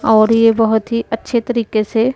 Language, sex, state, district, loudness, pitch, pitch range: Hindi, female, Punjab, Pathankot, -15 LUFS, 225 Hz, 220-230 Hz